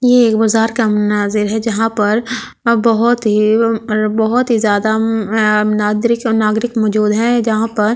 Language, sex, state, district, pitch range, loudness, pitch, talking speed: Hindi, female, Delhi, New Delhi, 215-230 Hz, -14 LUFS, 220 Hz, 190 wpm